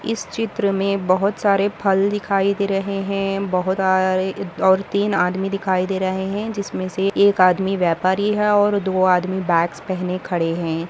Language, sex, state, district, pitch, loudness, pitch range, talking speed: Hindi, female, Maharashtra, Sindhudurg, 195 Hz, -19 LUFS, 185-200 Hz, 175 wpm